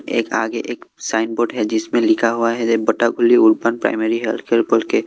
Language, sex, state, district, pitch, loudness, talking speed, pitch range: Hindi, male, Assam, Kamrup Metropolitan, 115 Hz, -17 LUFS, 200 wpm, 110-120 Hz